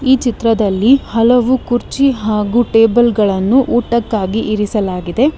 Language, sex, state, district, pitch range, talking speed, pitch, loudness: Kannada, female, Karnataka, Bangalore, 210-245 Hz, 100 wpm, 230 Hz, -13 LUFS